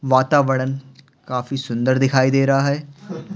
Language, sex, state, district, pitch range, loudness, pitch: Hindi, male, Bihar, Patna, 130-140 Hz, -19 LUFS, 135 Hz